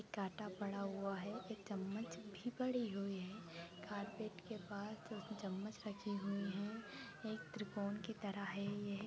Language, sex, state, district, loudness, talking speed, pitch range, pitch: Hindi, female, Bihar, Jahanabad, -46 LUFS, 150 wpm, 200-215 Hz, 205 Hz